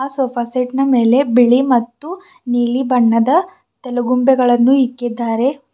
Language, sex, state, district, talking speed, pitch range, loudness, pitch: Kannada, female, Karnataka, Bidar, 105 wpm, 240-270 Hz, -15 LUFS, 250 Hz